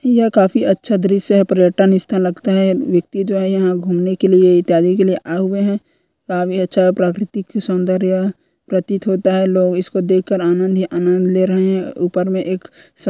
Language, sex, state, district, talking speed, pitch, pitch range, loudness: Hindi, female, Chhattisgarh, Korba, 190 wpm, 185 Hz, 180-195 Hz, -15 LUFS